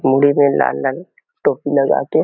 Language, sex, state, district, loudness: Chhattisgarhi, male, Chhattisgarh, Kabirdham, -16 LUFS